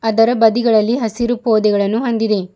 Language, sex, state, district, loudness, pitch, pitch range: Kannada, female, Karnataka, Bidar, -15 LUFS, 225 Hz, 215-235 Hz